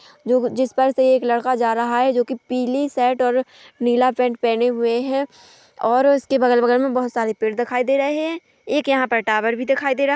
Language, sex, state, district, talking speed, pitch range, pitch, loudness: Hindi, female, Chhattisgarh, Korba, 235 wpm, 240-270 Hz, 250 Hz, -19 LUFS